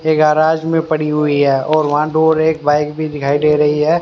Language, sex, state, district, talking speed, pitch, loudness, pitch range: Hindi, male, Haryana, Rohtak, 240 wpm, 155 Hz, -14 LUFS, 150-160 Hz